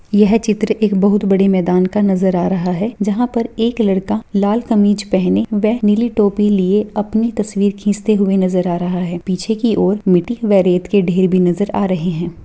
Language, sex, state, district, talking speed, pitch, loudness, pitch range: Hindi, female, Bihar, Purnia, 205 wpm, 205 Hz, -15 LUFS, 185-215 Hz